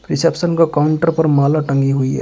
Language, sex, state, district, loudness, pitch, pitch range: Hindi, male, Uttar Pradesh, Shamli, -15 LUFS, 155 Hz, 140-165 Hz